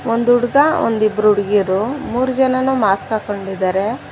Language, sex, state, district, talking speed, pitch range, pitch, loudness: Kannada, female, Karnataka, Bangalore, 115 wpm, 200-255 Hz, 220 Hz, -16 LUFS